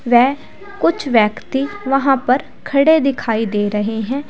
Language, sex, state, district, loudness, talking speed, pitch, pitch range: Hindi, female, Uttar Pradesh, Saharanpur, -16 LUFS, 140 wpm, 265 Hz, 225-280 Hz